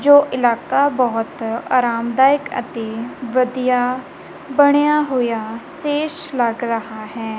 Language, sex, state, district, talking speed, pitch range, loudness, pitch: Punjabi, female, Punjab, Kapurthala, 95 wpm, 230-285 Hz, -18 LUFS, 250 Hz